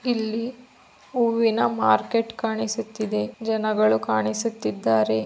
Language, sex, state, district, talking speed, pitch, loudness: Kannada, female, Karnataka, Belgaum, 70 wpm, 220 Hz, -23 LUFS